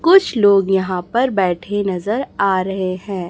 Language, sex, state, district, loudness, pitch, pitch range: Hindi, male, Chhattisgarh, Raipur, -17 LUFS, 195 Hz, 185-215 Hz